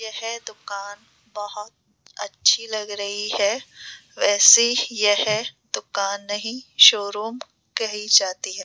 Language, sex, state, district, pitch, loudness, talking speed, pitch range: Hindi, female, Rajasthan, Jaipur, 210 Hz, -19 LUFS, 105 wpm, 205-225 Hz